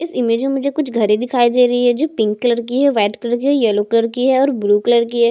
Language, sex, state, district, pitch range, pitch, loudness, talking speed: Hindi, female, Chhattisgarh, Jashpur, 230-265 Hz, 240 Hz, -16 LUFS, 315 wpm